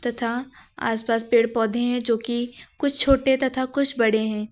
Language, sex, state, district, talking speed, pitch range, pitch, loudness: Hindi, female, Uttar Pradesh, Lucknow, 175 wpm, 230-260 Hz, 240 Hz, -22 LUFS